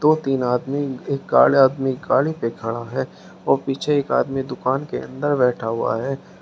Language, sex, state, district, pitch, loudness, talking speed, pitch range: Hindi, male, Uttar Pradesh, Shamli, 135 Hz, -21 LUFS, 175 wpm, 125-140 Hz